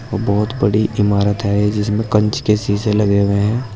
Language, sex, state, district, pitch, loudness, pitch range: Hindi, male, Uttar Pradesh, Saharanpur, 105 Hz, -16 LUFS, 100-110 Hz